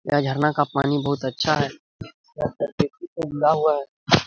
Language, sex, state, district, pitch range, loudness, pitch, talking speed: Hindi, male, Bihar, Lakhisarai, 140-155 Hz, -23 LUFS, 145 Hz, 125 wpm